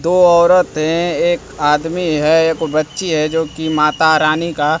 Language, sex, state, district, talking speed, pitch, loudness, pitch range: Hindi, male, Bihar, Kaimur, 150 wpm, 160 Hz, -14 LUFS, 155-170 Hz